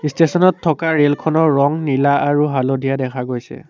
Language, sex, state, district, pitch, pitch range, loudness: Assamese, male, Assam, Sonitpur, 145 Hz, 135-160 Hz, -16 LUFS